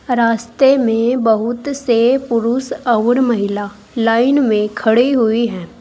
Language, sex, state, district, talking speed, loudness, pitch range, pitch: Hindi, female, Uttar Pradesh, Saharanpur, 125 wpm, -15 LUFS, 225-255 Hz, 235 Hz